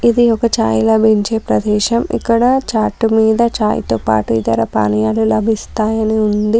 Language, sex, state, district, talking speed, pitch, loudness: Telugu, female, Telangana, Komaram Bheem, 125 wpm, 220 Hz, -14 LUFS